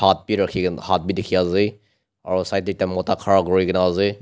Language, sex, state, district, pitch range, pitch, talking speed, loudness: Nagamese, male, Nagaland, Dimapur, 90-100 Hz, 95 Hz, 225 wpm, -20 LUFS